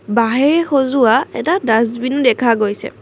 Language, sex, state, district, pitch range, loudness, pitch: Assamese, female, Assam, Kamrup Metropolitan, 225-270 Hz, -15 LUFS, 240 Hz